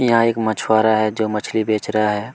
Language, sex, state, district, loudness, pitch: Hindi, male, Chhattisgarh, Kabirdham, -18 LUFS, 110 Hz